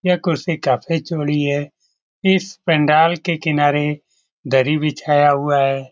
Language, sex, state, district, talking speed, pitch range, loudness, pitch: Hindi, male, Bihar, Lakhisarai, 130 wpm, 145-170 Hz, -17 LUFS, 150 Hz